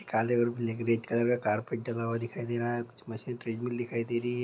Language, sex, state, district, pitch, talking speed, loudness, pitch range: Hindi, male, Chhattisgarh, Bilaspur, 120 Hz, 150 wpm, -32 LUFS, 115-120 Hz